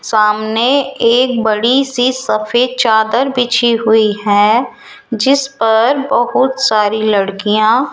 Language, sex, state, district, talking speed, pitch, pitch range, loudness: Hindi, female, Rajasthan, Jaipur, 115 wpm, 235 Hz, 215-260 Hz, -12 LUFS